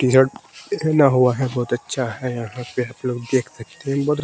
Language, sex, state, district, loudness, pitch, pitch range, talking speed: Hindi, male, Haryana, Rohtak, -21 LUFS, 130 Hz, 120-135 Hz, 210 wpm